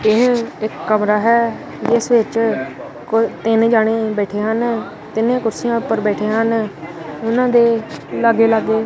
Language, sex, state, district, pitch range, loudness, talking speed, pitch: Punjabi, male, Punjab, Kapurthala, 215-230 Hz, -17 LUFS, 115 wpm, 225 Hz